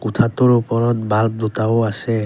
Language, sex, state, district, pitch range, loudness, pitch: Assamese, male, Assam, Kamrup Metropolitan, 110-120 Hz, -17 LUFS, 115 Hz